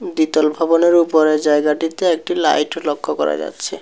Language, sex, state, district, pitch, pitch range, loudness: Bengali, male, Tripura, South Tripura, 155 Hz, 150-165 Hz, -16 LUFS